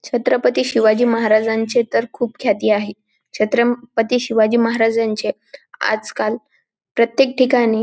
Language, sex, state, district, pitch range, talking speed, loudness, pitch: Marathi, female, Maharashtra, Dhule, 220-240 Hz, 105 wpm, -17 LUFS, 230 Hz